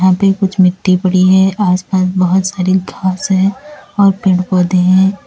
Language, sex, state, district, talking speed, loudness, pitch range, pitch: Hindi, female, Uttar Pradesh, Lalitpur, 170 wpm, -12 LUFS, 185-195 Hz, 190 Hz